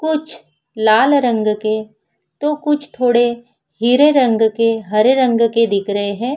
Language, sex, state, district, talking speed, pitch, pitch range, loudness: Hindi, female, Bihar, Vaishali, 150 wpm, 235 Hz, 220-265 Hz, -15 LUFS